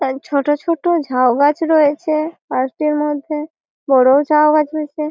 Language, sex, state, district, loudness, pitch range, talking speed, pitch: Bengali, female, West Bengal, Malda, -16 LUFS, 280-310 Hz, 155 wpm, 300 Hz